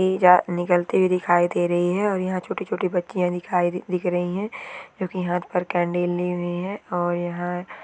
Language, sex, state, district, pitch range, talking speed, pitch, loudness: Hindi, female, Bihar, Jahanabad, 175-185 Hz, 205 wpm, 180 Hz, -23 LUFS